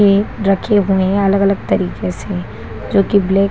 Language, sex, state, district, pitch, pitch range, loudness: Hindi, female, Bihar, Kishanganj, 195 Hz, 185-200 Hz, -15 LUFS